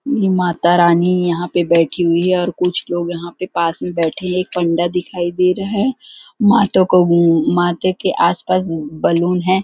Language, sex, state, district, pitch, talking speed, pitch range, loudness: Hindi, female, Chhattisgarh, Rajnandgaon, 175 Hz, 185 wpm, 170-185 Hz, -16 LUFS